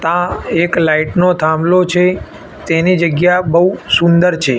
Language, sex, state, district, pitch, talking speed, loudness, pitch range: Gujarati, male, Gujarat, Gandhinagar, 170 Hz, 130 wpm, -12 LUFS, 165-180 Hz